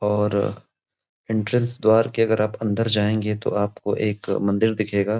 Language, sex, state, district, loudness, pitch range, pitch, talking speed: Hindi, male, Uttar Pradesh, Gorakhpur, -22 LUFS, 105-110 Hz, 110 Hz, 160 wpm